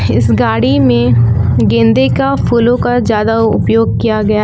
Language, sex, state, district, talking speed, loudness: Hindi, female, Jharkhand, Palamu, 160 wpm, -11 LUFS